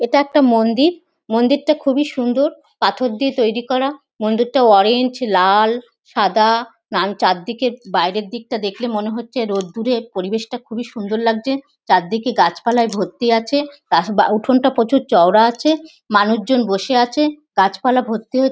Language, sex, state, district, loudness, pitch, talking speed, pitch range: Bengali, female, West Bengal, North 24 Parganas, -17 LUFS, 235 Hz, 135 wpm, 220-265 Hz